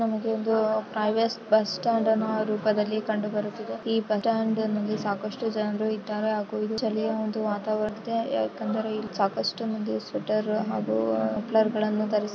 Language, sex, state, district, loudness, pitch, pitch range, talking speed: Kannada, female, Karnataka, Shimoga, -27 LUFS, 215 Hz, 210-220 Hz, 145 wpm